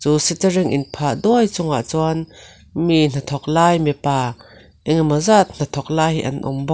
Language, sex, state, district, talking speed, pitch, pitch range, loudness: Mizo, female, Mizoram, Aizawl, 170 wpm, 155 Hz, 140-170 Hz, -18 LUFS